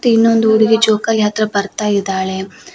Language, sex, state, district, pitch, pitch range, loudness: Kannada, female, Karnataka, Koppal, 215 Hz, 200-225 Hz, -14 LUFS